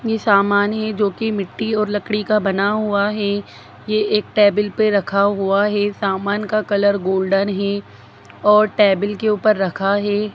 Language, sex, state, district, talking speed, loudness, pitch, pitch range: Hindi, female, Bihar, Jahanabad, 180 wpm, -18 LUFS, 205 Hz, 200-210 Hz